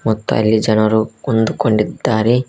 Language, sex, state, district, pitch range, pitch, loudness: Kannada, male, Karnataka, Koppal, 110-115 Hz, 110 Hz, -16 LUFS